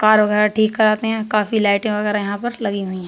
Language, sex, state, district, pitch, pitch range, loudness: Hindi, male, Uttar Pradesh, Budaun, 210 Hz, 205-215 Hz, -18 LUFS